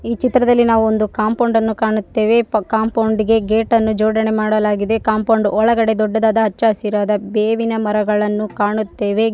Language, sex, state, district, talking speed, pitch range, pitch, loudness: Kannada, female, Karnataka, Raichur, 140 wpm, 215-225 Hz, 220 Hz, -16 LUFS